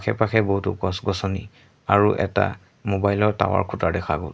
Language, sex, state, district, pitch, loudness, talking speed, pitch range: Assamese, male, Assam, Sonitpur, 100 Hz, -22 LUFS, 165 wpm, 95-105 Hz